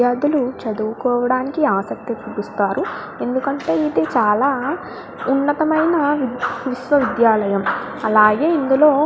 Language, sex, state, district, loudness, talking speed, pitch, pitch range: Telugu, female, Andhra Pradesh, Guntur, -18 LUFS, 65 wpm, 260 Hz, 225-290 Hz